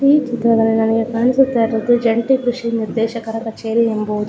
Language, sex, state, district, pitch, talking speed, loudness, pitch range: Kannada, female, Karnataka, Bellary, 230 Hz, 155 wpm, -17 LUFS, 225-240 Hz